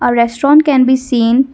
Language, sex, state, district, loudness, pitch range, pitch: English, female, Assam, Kamrup Metropolitan, -11 LUFS, 235-275 Hz, 260 Hz